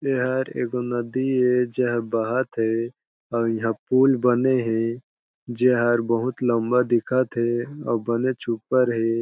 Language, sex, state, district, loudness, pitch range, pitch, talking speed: Chhattisgarhi, male, Chhattisgarh, Jashpur, -22 LUFS, 115-130 Hz, 120 Hz, 135 wpm